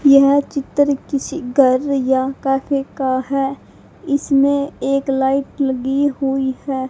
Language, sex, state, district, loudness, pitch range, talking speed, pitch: Hindi, female, Haryana, Charkhi Dadri, -18 LUFS, 270-280 Hz, 120 wpm, 275 Hz